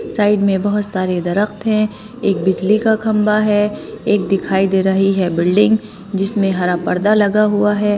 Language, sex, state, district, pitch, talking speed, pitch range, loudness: Hindi, female, Rajasthan, Churu, 205 Hz, 175 wpm, 190-210 Hz, -16 LUFS